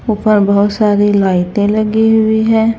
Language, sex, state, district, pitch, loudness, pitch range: Hindi, female, Chhattisgarh, Raipur, 215 Hz, -12 LUFS, 205-220 Hz